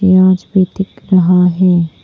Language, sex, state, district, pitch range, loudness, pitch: Hindi, female, Arunachal Pradesh, Papum Pare, 180-185 Hz, -11 LUFS, 185 Hz